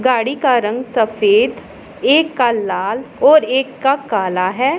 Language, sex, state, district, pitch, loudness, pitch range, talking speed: Hindi, female, Punjab, Pathankot, 255 Hz, -15 LUFS, 225-280 Hz, 150 wpm